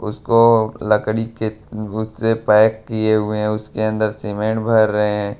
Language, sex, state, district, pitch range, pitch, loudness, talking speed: Hindi, male, Bihar, Katihar, 105-110 Hz, 110 Hz, -18 LUFS, 155 wpm